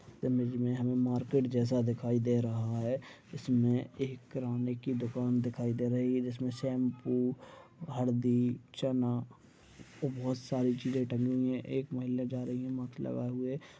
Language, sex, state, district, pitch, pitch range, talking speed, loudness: Hindi, male, Maharashtra, Aurangabad, 125 Hz, 120-130 Hz, 165 wpm, -33 LUFS